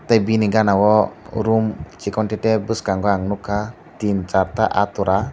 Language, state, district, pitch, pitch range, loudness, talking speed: Kokborok, Tripura, Dhalai, 105 Hz, 100-110 Hz, -19 LUFS, 170 wpm